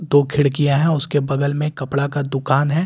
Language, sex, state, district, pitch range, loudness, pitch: Hindi, male, Delhi, New Delhi, 140-150 Hz, -19 LUFS, 145 Hz